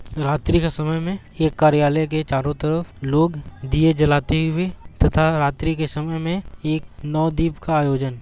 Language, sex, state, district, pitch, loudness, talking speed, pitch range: Hindi, male, Bihar, Gaya, 155 Hz, -20 LUFS, 160 wpm, 145-160 Hz